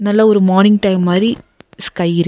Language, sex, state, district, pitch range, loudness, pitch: Tamil, female, Tamil Nadu, Nilgiris, 180-210 Hz, -12 LUFS, 195 Hz